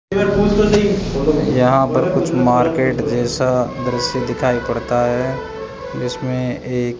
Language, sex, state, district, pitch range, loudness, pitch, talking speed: Hindi, male, Rajasthan, Jaipur, 125-150 Hz, -17 LUFS, 125 Hz, 105 wpm